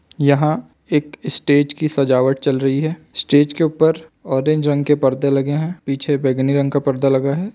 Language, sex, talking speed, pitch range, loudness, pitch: Chhattisgarhi, male, 200 wpm, 135-155 Hz, -17 LUFS, 145 Hz